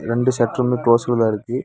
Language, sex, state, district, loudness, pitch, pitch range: Tamil, male, Tamil Nadu, Nilgiris, -18 LUFS, 120 Hz, 115-125 Hz